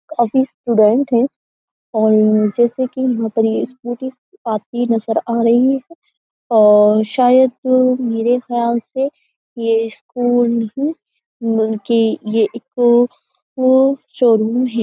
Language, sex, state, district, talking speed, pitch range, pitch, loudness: Hindi, female, Uttar Pradesh, Jyotiba Phule Nagar, 120 wpm, 225-255 Hz, 240 Hz, -16 LUFS